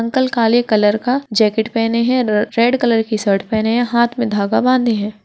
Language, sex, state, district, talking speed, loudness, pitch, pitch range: Hindi, female, Bihar, Gaya, 215 wpm, -16 LUFS, 230 Hz, 215-240 Hz